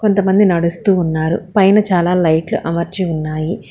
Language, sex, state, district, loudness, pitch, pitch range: Telugu, female, Telangana, Hyderabad, -15 LUFS, 175 Hz, 165-195 Hz